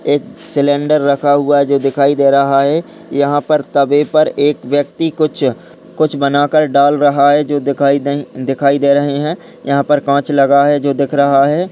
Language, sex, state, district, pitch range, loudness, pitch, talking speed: Hindi, male, Uttar Pradesh, Deoria, 140-145 Hz, -13 LUFS, 145 Hz, 175 wpm